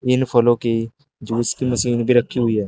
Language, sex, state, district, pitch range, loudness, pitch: Hindi, male, Uttar Pradesh, Shamli, 115-125 Hz, -19 LUFS, 120 Hz